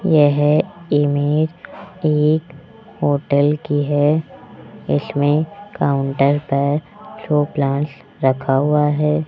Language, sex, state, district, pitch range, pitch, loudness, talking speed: Hindi, male, Rajasthan, Jaipur, 145-155 Hz, 150 Hz, -18 LUFS, 90 wpm